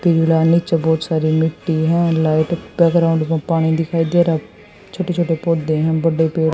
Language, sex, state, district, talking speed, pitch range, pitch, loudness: Hindi, female, Haryana, Jhajjar, 190 wpm, 160-170 Hz, 165 Hz, -17 LUFS